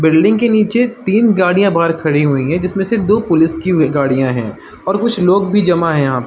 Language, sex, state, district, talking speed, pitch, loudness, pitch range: Hindi, male, Uttar Pradesh, Varanasi, 240 wpm, 180 Hz, -13 LUFS, 155-205 Hz